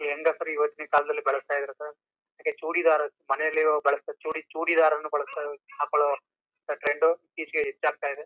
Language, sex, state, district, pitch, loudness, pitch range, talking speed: Kannada, male, Karnataka, Chamarajanagar, 150 Hz, -27 LUFS, 145-160 Hz, 125 wpm